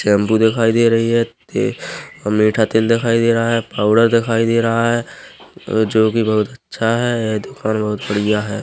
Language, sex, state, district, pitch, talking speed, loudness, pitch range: Hindi, male, Chhattisgarh, Korba, 115 Hz, 210 wpm, -16 LUFS, 110-115 Hz